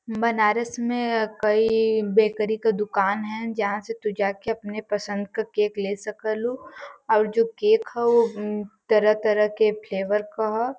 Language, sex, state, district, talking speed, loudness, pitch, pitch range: Bhojpuri, female, Uttar Pradesh, Varanasi, 160 wpm, -23 LUFS, 215 Hz, 210-225 Hz